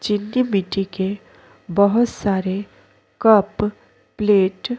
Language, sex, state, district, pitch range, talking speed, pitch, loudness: Hindi, female, Chhattisgarh, Korba, 195-215 Hz, 100 wpm, 205 Hz, -19 LUFS